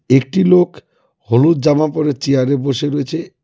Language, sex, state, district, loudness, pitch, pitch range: Bengali, male, West Bengal, Cooch Behar, -15 LUFS, 145 Hz, 135-160 Hz